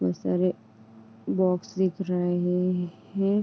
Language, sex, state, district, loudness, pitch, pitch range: Hindi, female, Uttar Pradesh, Deoria, -27 LUFS, 175 Hz, 110-185 Hz